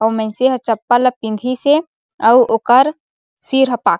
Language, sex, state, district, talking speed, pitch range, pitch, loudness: Chhattisgarhi, female, Chhattisgarh, Sarguja, 150 wpm, 225-260 Hz, 245 Hz, -15 LUFS